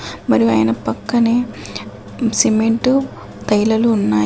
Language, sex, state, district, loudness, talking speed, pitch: Telugu, female, Telangana, Adilabad, -16 LUFS, 85 wpm, 220 Hz